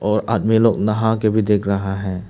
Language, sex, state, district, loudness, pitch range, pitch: Hindi, male, Arunachal Pradesh, Papum Pare, -18 LUFS, 100-110 Hz, 105 Hz